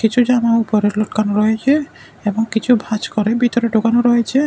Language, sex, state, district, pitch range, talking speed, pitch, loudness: Bengali, male, Tripura, West Tripura, 215-245 Hz, 160 wpm, 230 Hz, -16 LUFS